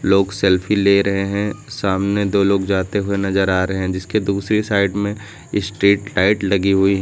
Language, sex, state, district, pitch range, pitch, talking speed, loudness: Hindi, male, Uttar Pradesh, Lucknow, 95-100 Hz, 100 Hz, 195 wpm, -18 LUFS